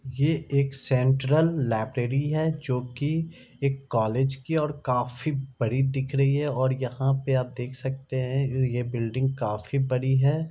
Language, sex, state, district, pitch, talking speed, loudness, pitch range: Hindi, male, Bihar, Darbhanga, 135 Hz, 160 wpm, -26 LUFS, 125-140 Hz